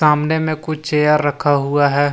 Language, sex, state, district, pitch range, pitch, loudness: Hindi, male, Jharkhand, Deoghar, 145-155 Hz, 150 Hz, -16 LUFS